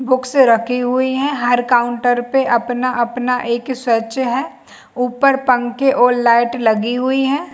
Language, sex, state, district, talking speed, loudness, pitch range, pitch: Hindi, female, Chhattisgarh, Bilaspur, 160 wpm, -16 LUFS, 240-260 Hz, 245 Hz